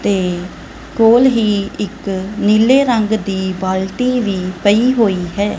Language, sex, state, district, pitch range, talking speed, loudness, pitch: Punjabi, female, Punjab, Kapurthala, 190-225 Hz, 130 wpm, -15 LUFS, 205 Hz